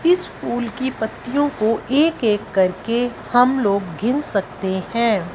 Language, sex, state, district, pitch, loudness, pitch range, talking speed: Hindi, female, Punjab, Fazilka, 230 Hz, -20 LUFS, 205-260 Hz, 135 wpm